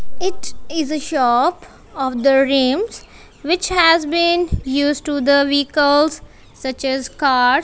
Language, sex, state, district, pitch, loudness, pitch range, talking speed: English, female, Punjab, Kapurthala, 285 Hz, -17 LUFS, 270-330 Hz, 135 wpm